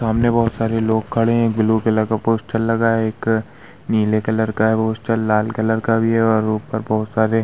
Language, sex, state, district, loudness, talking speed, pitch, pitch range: Hindi, male, Bihar, Vaishali, -18 LUFS, 235 wpm, 110 Hz, 110-115 Hz